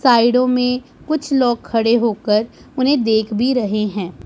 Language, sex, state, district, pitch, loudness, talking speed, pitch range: Hindi, male, Punjab, Pathankot, 240 Hz, -17 LUFS, 155 wpm, 220-255 Hz